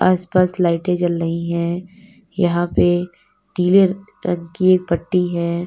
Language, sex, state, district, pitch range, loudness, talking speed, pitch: Hindi, female, Uttar Pradesh, Lalitpur, 170-185 Hz, -18 LUFS, 135 wpm, 180 Hz